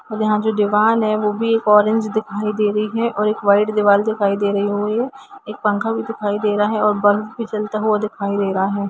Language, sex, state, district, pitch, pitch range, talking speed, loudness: Hindi, female, Jharkhand, Jamtara, 210 Hz, 205-215 Hz, 220 wpm, -18 LUFS